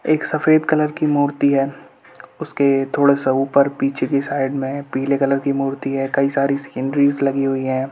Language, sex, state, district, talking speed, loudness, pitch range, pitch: Hindi, male, Uttar Pradesh, Budaun, 150 wpm, -18 LUFS, 135-140 Hz, 140 Hz